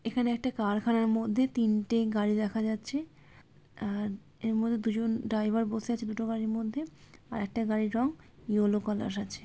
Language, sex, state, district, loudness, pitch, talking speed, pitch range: Bengali, female, West Bengal, Malda, -31 LUFS, 225 Hz, 160 wpm, 215-230 Hz